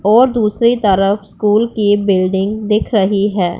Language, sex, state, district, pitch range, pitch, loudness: Hindi, male, Punjab, Pathankot, 195-215 Hz, 205 Hz, -14 LUFS